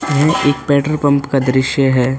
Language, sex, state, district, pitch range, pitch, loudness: Hindi, male, Uttar Pradesh, Budaun, 130-145 Hz, 140 Hz, -14 LUFS